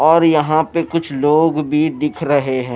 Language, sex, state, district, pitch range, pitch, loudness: Hindi, male, Himachal Pradesh, Shimla, 145-160 Hz, 155 Hz, -16 LUFS